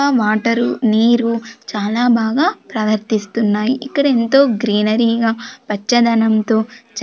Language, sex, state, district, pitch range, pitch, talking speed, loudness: Telugu, female, Andhra Pradesh, Sri Satya Sai, 215-240 Hz, 230 Hz, 75 wpm, -16 LUFS